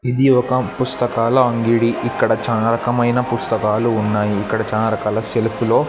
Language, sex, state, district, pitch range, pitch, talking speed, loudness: Telugu, male, Andhra Pradesh, Sri Satya Sai, 110-125 Hz, 115 Hz, 155 wpm, -17 LUFS